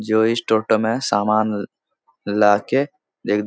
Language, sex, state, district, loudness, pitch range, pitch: Hindi, male, Bihar, Supaul, -19 LUFS, 105-115 Hz, 110 Hz